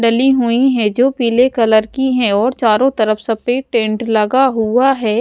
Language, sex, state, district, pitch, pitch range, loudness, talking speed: Hindi, female, Haryana, Jhajjar, 240 Hz, 220-260 Hz, -14 LUFS, 185 wpm